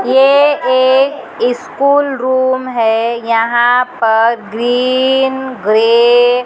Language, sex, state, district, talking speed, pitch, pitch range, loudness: Hindi, male, Maharashtra, Mumbai Suburban, 95 wpm, 250 Hz, 235-265 Hz, -12 LUFS